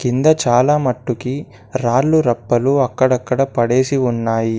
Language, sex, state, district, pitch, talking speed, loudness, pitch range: Telugu, male, Telangana, Komaram Bheem, 125 Hz, 105 wpm, -16 LUFS, 120-135 Hz